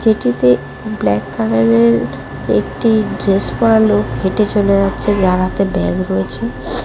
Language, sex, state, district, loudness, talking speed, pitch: Bengali, female, West Bengal, Cooch Behar, -15 LUFS, 120 wpm, 180 Hz